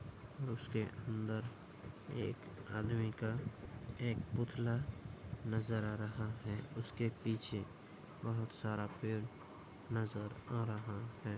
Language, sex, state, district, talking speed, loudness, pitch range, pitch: Hindi, male, Bihar, Madhepura, 105 wpm, -43 LUFS, 105-115 Hz, 110 Hz